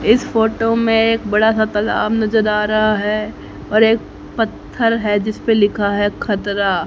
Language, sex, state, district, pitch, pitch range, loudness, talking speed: Hindi, female, Haryana, Jhajjar, 215 Hz, 205-225 Hz, -16 LUFS, 175 wpm